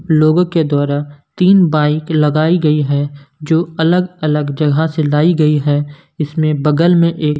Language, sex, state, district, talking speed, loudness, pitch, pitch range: Hindi, male, Punjab, Kapurthala, 160 wpm, -14 LUFS, 155 Hz, 150-165 Hz